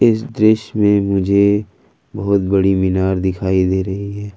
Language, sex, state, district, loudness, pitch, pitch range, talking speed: Hindi, male, Jharkhand, Ranchi, -16 LUFS, 100 Hz, 95-105 Hz, 150 wpm